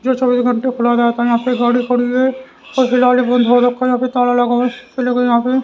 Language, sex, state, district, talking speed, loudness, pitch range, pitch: Hindi, male, Haryana, Rohtak, 255 wpm, -15 LUFS, 245-255 Hz, 245 Hz